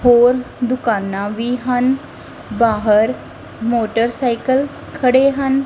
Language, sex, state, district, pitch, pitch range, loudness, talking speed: Punjabi, female, Punjab, Kapurthala, 245 Hz, 230-260 Hz, -17 LUFS, 85 wpm